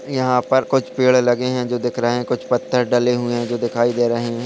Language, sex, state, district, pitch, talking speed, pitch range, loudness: Hindi, male, Bihar, Purnia, 125 Hz, 270 wpm, 120-125 Hz, -18 LUFS